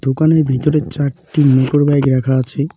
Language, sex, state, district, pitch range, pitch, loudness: Bengali, male, West Bengal, Cooch Behar, 130-150 Hz, 140 Hz, -14 LUFS